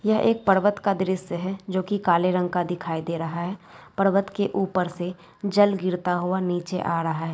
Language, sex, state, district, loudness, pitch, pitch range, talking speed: Hindi, female, West Bengal, Jalpaiguri, -24 LUFS, 185 Hz, 175-195 Hz, 210 wpm